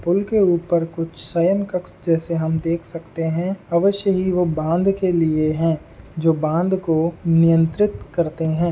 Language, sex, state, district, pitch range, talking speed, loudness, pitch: Hindi, male, Uttar Pradesh, Etah, 165-180 Hz, 170 wpm, -20 LUFS, 170 Hz